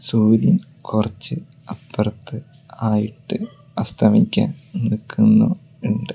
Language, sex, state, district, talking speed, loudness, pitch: Malayalam, male, Kerala, Kozhikode, 70 wpm, -20 LUFS, 145 Hz